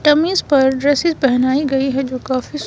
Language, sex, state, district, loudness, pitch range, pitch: Hindi, female, Himachal Pradesh, Shimla, -16 LUFS, 265-295 Hz, 270 Hz